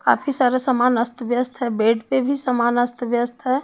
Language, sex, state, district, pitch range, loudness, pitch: Hindi, female, Chhattisgarh, Raipur, 240-260 Hz, -20 LUFS, 245 Hz